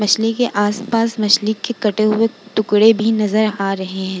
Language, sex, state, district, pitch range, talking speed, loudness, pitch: Hindi, female, Bihar, Vaishali, 205-225 Hz, 185 wpm, -16 LUFS, 215 Hz